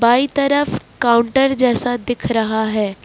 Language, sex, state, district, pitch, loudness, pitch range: Hindi, male, Jharkhand, Ranchi, 240 Hz, -17 LUFS, 225-265 Hz